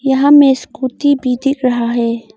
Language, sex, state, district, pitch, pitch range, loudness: Hindi, female, Arunachal Pradesh, Longding, 260 Hz, 240-280 Hz, -13 LUFS